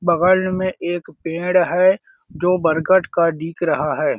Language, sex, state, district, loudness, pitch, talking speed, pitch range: Hindi, male, Chhattisgarh, Balrampur, -18 LUFS, 175 Hz, 155 wpm, 165-185 Hz